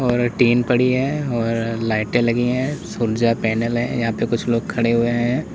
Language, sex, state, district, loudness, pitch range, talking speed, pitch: Hindi, male, Uttar Pradesh, Lalitpur, -19 LUFS, 115-125 Hz, 205 wpm, 120 Hz